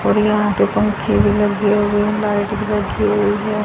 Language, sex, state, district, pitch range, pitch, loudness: Hindi, female, Haryana, Rohtak, 205-210 Hz, 210 Hz, -17 LUFS